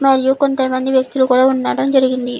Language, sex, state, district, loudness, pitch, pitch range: Telugu, female, Andhra Pradesh, Guntur, -15 LUFS, 260 Hz, 255-270 Hz